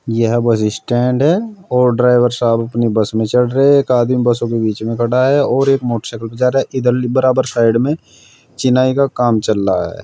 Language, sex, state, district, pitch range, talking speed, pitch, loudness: Hindi, male, Uttar Pradesh, Saharanpur, 115-130 Hz, 225 wpm, 125 Hz, -14 LUFS